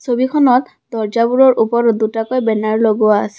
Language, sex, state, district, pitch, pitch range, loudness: Assamese, female, Assam, Kamrup Metropolitan, 230 Hz, 220-250 Hz, -14 LUFS